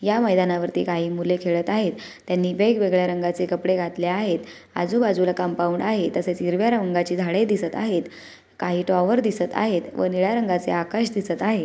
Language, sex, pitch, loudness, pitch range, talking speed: Marathi, female, 180 Hz, -22 LUFS, 175-210 Hz, 160 wpm